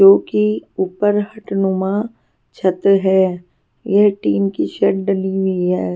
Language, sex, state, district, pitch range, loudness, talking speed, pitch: Hindi, female, Punjab, Pathankot, 180-200 Hz, -17 LUFS, 130 wpm, 190 Hz